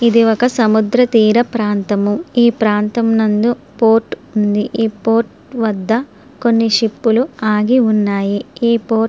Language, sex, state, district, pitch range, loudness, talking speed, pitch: Telugu, female, Andhra Pradesh, Srikakulam, 215-235 Hz, -14 LUFS, 140 wpm, 225 Hz